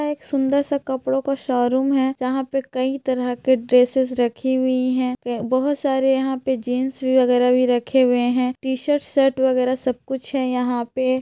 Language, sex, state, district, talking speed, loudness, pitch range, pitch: Magahi, female, Bihar, Gaya, 185 wpm, -20 LUFS, 250-265 Hz, 260 Hz